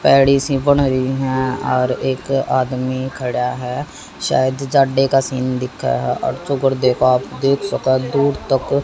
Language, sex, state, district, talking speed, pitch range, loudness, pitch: Hindi, female, Haryana, Jhajjar, 40 wpm, 130-135 Hz, -17 LUFS, 130 Hz